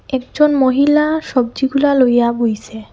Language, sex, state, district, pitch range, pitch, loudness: Bengali, female, Assam, Hailakandi, 240-285 Hz, 265 Hz, -14 LUFS